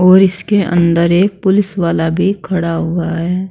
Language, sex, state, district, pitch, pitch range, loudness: Hindi, female, Uttar Pradesh, Saharanpur, 180 Hz, 170-190 Hz, -13 LUFS